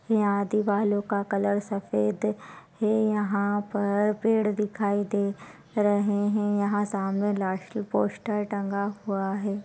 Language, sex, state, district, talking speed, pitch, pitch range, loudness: Hindi, female, Chhattisgarh, Balrampur, 125 wpm, 205 Hz, 200-210 Hz, -27 LUFS